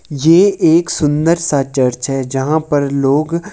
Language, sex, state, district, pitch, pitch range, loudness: Hindi, male, Himachal Pradesh, Shimla, 150 Hz, 135-165 Hz, -14 LUFS